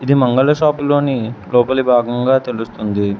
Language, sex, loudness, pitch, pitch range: Telugu, male, -15 LUFS, 125 Hz, 115-135 Hz